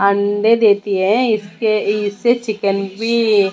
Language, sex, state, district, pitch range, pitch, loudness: Hindi, female, Odisha, Malkangiri, 200-225 Hz, 210 Hz, -16 LUFS